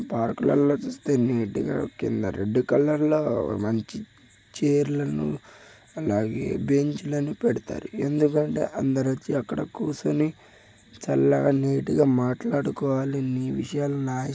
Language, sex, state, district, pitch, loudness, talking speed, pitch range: Telugu, male, Telangana, Nalgonda, 135 Hz, -25 LUFS, 115 wpm, 115-145 Hz